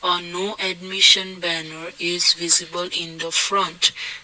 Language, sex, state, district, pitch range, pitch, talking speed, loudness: English, male, Assam, Kamrup Metropolitan, 170-185 Hz, 175 Hz, 130 wpm, -19 LUFS